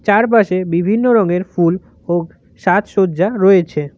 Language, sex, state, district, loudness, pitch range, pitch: Bengali, male, West Bengal, Cooch Behar, -15 LUFS, 175-205 Hz, 185 Hz